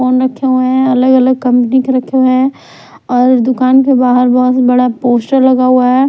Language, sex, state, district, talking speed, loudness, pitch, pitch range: Hindi, female, Odisha, Khordha, 215 wpm, -10 LUFS, 255 Hz, 250-260 Hz